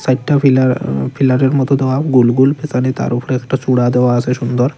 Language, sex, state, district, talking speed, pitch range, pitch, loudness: Bengali, male, Tripura, Unakoti, 190 wpm, 125-135 Hz, 130 Hz, -14 LUFS